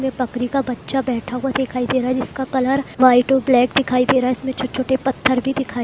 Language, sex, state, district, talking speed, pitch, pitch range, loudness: Hindi, female, Bihar, East Champaran, 275 wpm, 260 Hz, 250-265 Hz, -19 LUFS